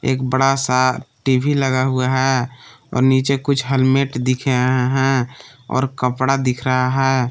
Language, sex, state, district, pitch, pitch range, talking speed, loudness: Hindi, male, Jharkhand, Palamu, 130 Hz, 130-135 Hz, 150 wpm, -18 LUFS